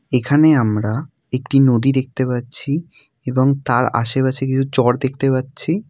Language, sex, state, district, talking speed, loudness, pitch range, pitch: Bengali, female, West Bengal, Jalpaiguri, 130 wpm, -18 LUFS, 125-140 Hz, 130 Hz